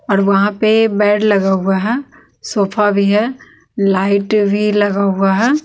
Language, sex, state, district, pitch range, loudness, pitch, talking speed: Hindi, female, Bihar, West Champaran, 195-215 Hz, -14 LUFS, 205 Hz, 160 wpm